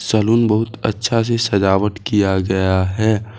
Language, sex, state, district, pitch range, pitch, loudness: Hindi, male, Jharkhand, Deoghar, 95-115 Hz, 110 Hz, -17 LUFS